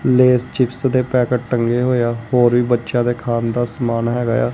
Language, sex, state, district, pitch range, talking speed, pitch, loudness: Punjabi, male, Punjab, Kapurthala, 120-125 Hz, 210 wpm, 120 Hz, -17 LUFS